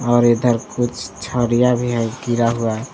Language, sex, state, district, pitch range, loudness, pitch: Hindi, male, Jharkhand, Palamu, 115-120 Hz, -18 LUFS, 120 Hz